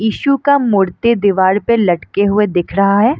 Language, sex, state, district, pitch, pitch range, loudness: Hindi, female, Bihar, Madhepura, 205 Hz, 195-235 Hz, -13 LUFS